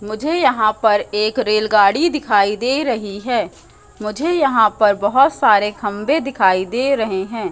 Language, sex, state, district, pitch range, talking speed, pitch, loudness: Hindi, female, Madhya Pradesh, Katni, 205-270 Hz, 160 wpm, 215 Hz, -16 LUFS